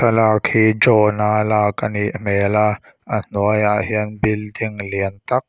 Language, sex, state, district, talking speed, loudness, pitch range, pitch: Mizo, male, Mizoram, Aizawl, 165 wpm, -18 LUFS, 105-110 Hz, 105 Hz